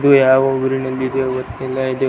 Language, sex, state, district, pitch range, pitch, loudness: Kannada, male, Karnataka, Belgaum, 130-135 Hz, 130 Hz, -17 LUFS